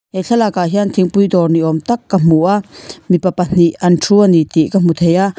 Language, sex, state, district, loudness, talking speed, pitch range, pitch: Mizo, female, Mizoram, Aizawl, -13 LUFS, 255 wpm, 170-200 Hz, 180 Hz